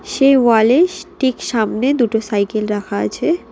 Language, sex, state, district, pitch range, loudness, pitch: Bengali, female, West Bengal, Alipurduar, 215-275 Hz, -16 LUFS, 240 Hz